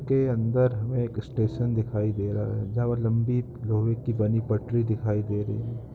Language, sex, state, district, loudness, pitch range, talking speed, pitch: Hindi, male, Uttar Pradesh, Varanasi, -27 LUFS, 110-120 Hz, 190 wpm, 115 Hz